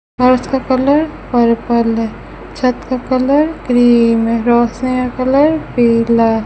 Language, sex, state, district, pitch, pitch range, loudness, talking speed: Hindi, female, Rajasthan, Bikaner, 250 Hz, 230-260 Hz, -13 LUFS, 140 wpm